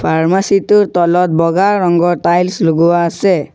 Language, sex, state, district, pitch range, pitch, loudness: Assamese, male, Assam, Sonitpur, 170-190 Hz, 175 Hz, -12 LUFS